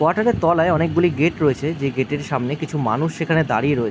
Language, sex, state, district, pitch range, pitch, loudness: Bengali, male, West Bengal, Jalpaiguri, 140-165 Hz, 155 Hz, -19 LUFS